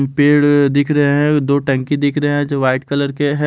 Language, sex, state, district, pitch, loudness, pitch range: Hindi, male, Haryana, Rohtak, 145 Hz, -15 LUFS, 140-145 Hz